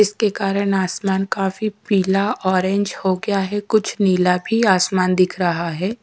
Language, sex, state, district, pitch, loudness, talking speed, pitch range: Hindi, female, Odisha, Sambalpur, 195 Hz, -19 LUFS, 160 wpm, 185-205 Hz